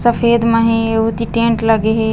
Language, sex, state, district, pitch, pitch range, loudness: Chhattisgarhi, female, Chhattisgarh, Bastar, 230 Hz, 225-230 Hz, -14 LUFS